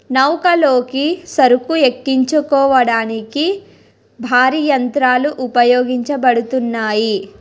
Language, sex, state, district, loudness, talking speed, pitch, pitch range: Telugu, female, Telangana, Hyderabad, -14 LUFS, 50 wpm, 260 Hz, 245-285 Hz